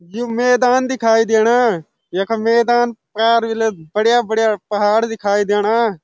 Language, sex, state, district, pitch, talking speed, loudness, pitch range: Garhwali, male, Uttarakhand, Uttarkashi, 225 Hz, 110 wpm, -16 LUFS, 210-235 Hz